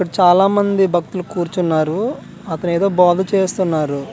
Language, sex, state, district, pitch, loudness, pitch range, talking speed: Telugu, male, Andhra Pradesh, Manyam, 180 Hz, -16 LUFS, 170-195 Hz, 145 wpm